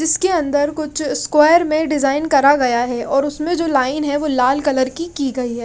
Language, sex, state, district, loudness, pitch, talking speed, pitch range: Hindi, female, Haryana, Rohtak, -17 LUFS, 290 Hz, 225 wpm, 270-310 Hz